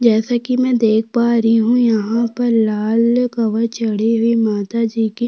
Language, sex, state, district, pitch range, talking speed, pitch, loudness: Hindi, female, Chhattisgarh, Sukma, 225-235 Hz, 180 wpm, 230 Hz, -16 LUFS